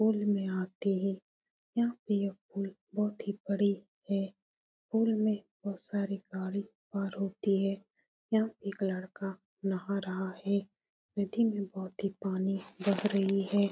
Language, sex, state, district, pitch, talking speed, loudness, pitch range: Hindi, female, Bihar, Supaul, 200 Hz, 170 wpm, -34 LUFS, 195-205 Hz